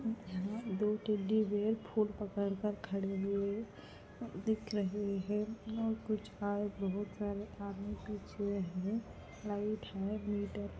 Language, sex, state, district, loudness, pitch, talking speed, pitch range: Hindi, female, Andhra Pradesh, Anantapur, -38 LUFS, 205 Hz, 135 wpm, 200-215 Hz